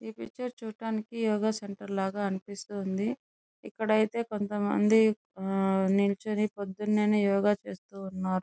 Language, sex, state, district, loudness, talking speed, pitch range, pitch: Telugu, female, Andhra Pradesh, Chittoor, -29 LUFS, 95 wpm, 195-215 Hz, 205 Hz